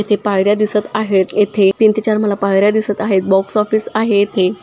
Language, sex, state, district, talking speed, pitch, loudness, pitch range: Marathi, female, Maharashtra, Sindhudurg, 205 wpm, 205 Hz, -14 LUFS, 195-215 Hz